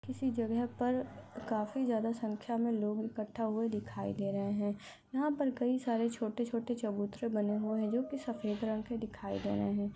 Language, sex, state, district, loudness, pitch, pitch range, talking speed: Hindi, female, Goa, North and South Goa, -36 LUFS, 225 Hz, 210-240 Hz, 185 wpm